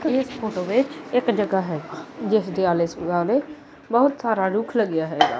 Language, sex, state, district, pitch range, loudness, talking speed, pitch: Punjabi, male, Punjab, Kapurthala, 180-255 Hz, -22 LUFS, 165 wpm, 220 Hz